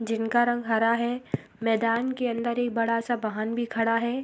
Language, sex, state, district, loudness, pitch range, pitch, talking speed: Hindi, female, Uttar Pradesh, Muzaffarnagar, -26 LUFS, 225-240 Hz, 230 Hz, 200 wpm